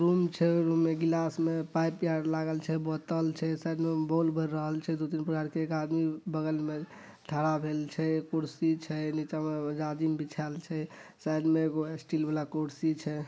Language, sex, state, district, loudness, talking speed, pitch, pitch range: Maithili, male, Bihar, Madhepura, -31 LUFS, 185 wpm, 160 Hz, 155-160 Hz